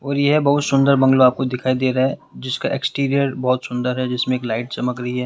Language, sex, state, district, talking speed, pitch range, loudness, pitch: Hindi, male, Rajasthan, Jaipur, 240 wpm, 125-140 Hz, -19 LUFS, 130 Hz